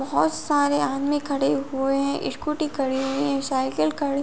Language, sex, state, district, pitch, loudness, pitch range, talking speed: Hindi, female, Uttar Pradesh, Muzaffarnagar, 275 Hz, -24 LUFS, 270-285 Hz, 185 wpm